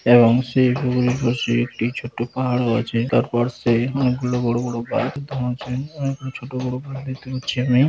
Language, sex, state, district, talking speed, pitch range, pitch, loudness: Bengali, male, West Bengal, Malda, 175 wpm, 120-130 Hz, 125 Hz, -21 LUFS